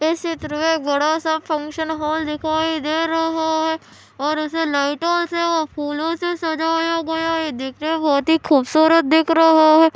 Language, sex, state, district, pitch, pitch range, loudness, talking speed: Hindi, male, Andhra Pradesh, Anantapur, 320 Hz, 310-325 Hz, -19 LUFS, 170 wpm